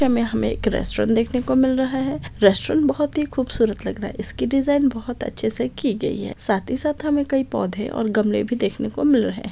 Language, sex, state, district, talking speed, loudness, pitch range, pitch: Hindi, female, Maharashtra, Pune, 245 wpm, -21 LUFS, 225-275 Hz, 255 Hz